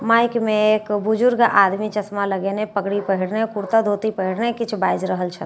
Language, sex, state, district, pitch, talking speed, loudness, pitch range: Maithili, female, Bihar, Katihar, 210 Hz, 165 wpm, -20 LUFS, 200-220 Hz